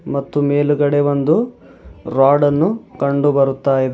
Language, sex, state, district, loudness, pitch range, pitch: Kannada, male, Karnataka, Bidar, -16 LUFS, 140-145 Hz, 145 Hz